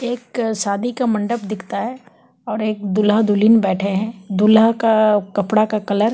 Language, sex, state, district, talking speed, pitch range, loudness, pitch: Hindi, female, Chhattisgarh, Kabirdham, 175 wpm, 205-230 Hz, -18 LUFS, 215 Hz